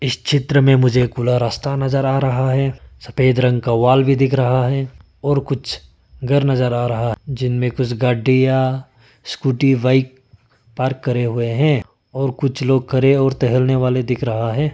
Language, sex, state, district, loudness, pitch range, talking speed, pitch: Hindi, male, Arunachal Pradesh, Lower Dibang Valley, -17 LUFS, 125-135 Hz, 165 wpm, 130 Hz